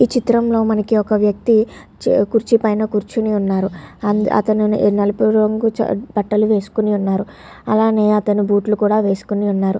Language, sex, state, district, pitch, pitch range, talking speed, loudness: Telugu, female, Andhra Pradesh, Guntur, 210 Hz, 205-220 Hz, 130 wpm, -17 LUFS